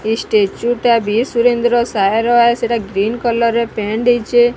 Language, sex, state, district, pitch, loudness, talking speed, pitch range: Odia, female, Odisha, Sambalpur, 235 Hz, -15 LUFS, 185 wpm, 220-240 Hz